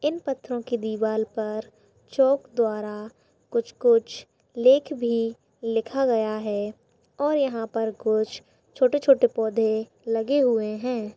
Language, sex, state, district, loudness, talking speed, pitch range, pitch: Hindi, female, Uttarakhand, Tehri Garhwal, -24 LUFS, 120 wpm, 220-270 Hz, 230 Hz